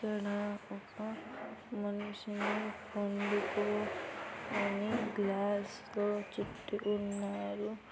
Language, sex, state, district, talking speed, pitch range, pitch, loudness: Telugu, female, Andhra Pradesh, Anantapur, 70 wpm, 200-210 Hz, 205 Hz, -38 LUFS